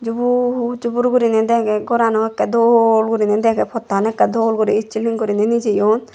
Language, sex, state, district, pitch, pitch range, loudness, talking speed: Chakma, female, Tripura, Dhalai, 225 Hz, 220-235 Hz, -16 LUFS, 155 wpm